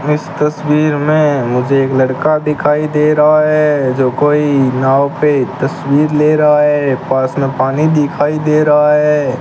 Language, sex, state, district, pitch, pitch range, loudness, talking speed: Hindi, male, Rajasthan, Bikaner, 150 Hz, 135-150 Hz, -12 LUFS, 160 wpm